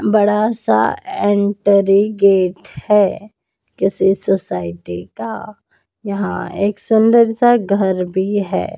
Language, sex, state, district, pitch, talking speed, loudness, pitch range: Hindi, female, Madhya Pradesh, Dhar, 200 Hz, 100 wpm, -16 LUFS, 190-215 Hz